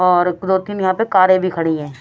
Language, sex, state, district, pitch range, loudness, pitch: Hindi, female, Haryana, Rohtak, 175-190 Hz, -16 LUFS, 185 Hz